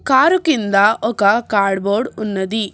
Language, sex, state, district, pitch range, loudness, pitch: Telugu, female, Telangana, Hyderabad, 200-240 Hz, -16 LUFS, 210 Hz